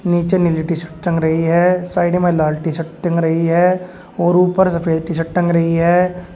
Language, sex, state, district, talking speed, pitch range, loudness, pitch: Hindi, male, Uttar Pradesh, Shamli, 215 wpm, 165-180 Hz, -16 LUFS, 170 Hz